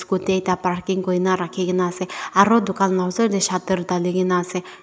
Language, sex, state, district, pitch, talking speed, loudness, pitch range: Nagamese, female, Nagaland, Dimapur, 185 Hz, 175 wpm, -20 LUFS, 180-190 Hz